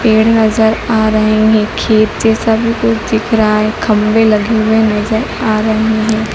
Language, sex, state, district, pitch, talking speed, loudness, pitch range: Hindi, female, Madhya Pradesh, Dhar, 220 Hz, 180 wpm, -12 LUFS, 215-225 Hz